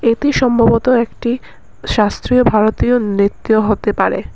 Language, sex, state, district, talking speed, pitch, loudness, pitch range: Bengali, female, Assam, Kamrup Metropolitan, 110 wpm, 230 Hz, -14 LUFS, 215-245 Hz